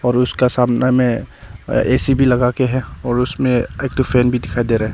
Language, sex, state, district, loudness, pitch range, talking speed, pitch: Hindi, male, Arunachal Pradesh, Longding, -16 LUFS, 120-130 Hz, 230 wpm, 125 Hz